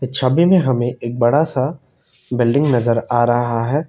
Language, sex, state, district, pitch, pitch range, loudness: Hindi, male, Assam, Kamrup Metropolitan, 130 Hz, 120-145 Hz, -17 LUFS